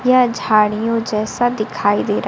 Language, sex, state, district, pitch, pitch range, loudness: Hindi, female, Bihar, Kaimur, 225 Hz, 215-245 Hz, -17 LUFS